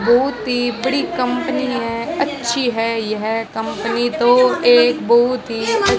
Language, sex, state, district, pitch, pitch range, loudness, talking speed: Hindi, male, Rajasthan, Bikaner, 240 Hz, 225-250 Hz, -17 LUFS, 140 wpm